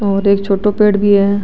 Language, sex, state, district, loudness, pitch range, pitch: Marwari, female, Rajasthan, Nagaur, -13 LUFS, 200-205 Hz, 200 Hz